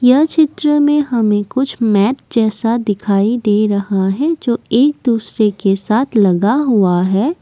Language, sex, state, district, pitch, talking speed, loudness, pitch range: Hindi, female, Assam, Kamrup Metropolitan, 225 Hz, 155 wpm, -14 LUFS, 205-270 Hz